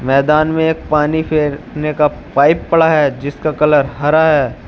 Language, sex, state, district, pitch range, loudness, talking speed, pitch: Hindi, male, Uttar Pradesh, Shamli, 140-155 Hz, -14 LUFS, 155 wpm, 150 Hz